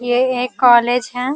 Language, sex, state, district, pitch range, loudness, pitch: Hindi, female, Uttar Pradesh, Jalaun, 245-250 Hz, -15 LUFS, 250 Hz